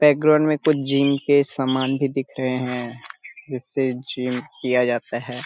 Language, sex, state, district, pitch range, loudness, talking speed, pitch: Hindi, male, Bihar, Saharsa, 125-140 Hz, -21 LUFS, 165 wpm, 130 Hz